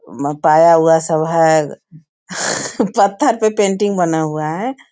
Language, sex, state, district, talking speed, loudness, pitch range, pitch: Hindi, female, Bihar, Sitamarhi, 120 wpm, -15 LUFS, 155-200 Hz, 165 Hz